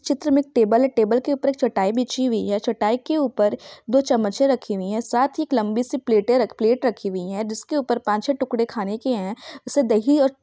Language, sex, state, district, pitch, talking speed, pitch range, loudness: Hindi, female, Jharkhand, Sahebganj, 240 Hz, 235 wpm, 215-275 Hz, -21 LUFS